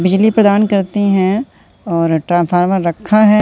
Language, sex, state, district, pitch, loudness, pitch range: Hindi, male, Madhya Pradesh, Katni, 195 Hz, -13 LUFS, 175-210 Hz